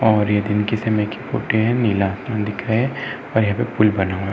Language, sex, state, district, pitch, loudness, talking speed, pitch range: Hindi, male, Uttar Pradesh, Etah, 105 Hz, -20 LUFS, 275 wpm, 105-110 Hz